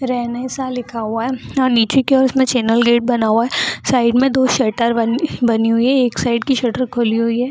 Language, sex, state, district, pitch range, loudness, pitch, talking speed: Hindi, female, Bihar, Jamui, 235-260 Hz, -16 LUFS, 245 Hz, 240 wpm